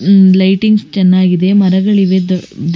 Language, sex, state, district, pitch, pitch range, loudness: Kannada, female, Karnataka, Bangalore, 190 Hz, 185-195 Hz, -10 LUFS